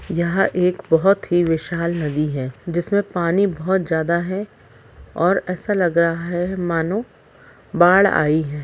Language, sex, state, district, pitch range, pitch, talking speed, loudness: Hindi, male, Jharkhand, Jamtara, 165-190 Hz, 175 Hz, 145 wpm, -19 LUFS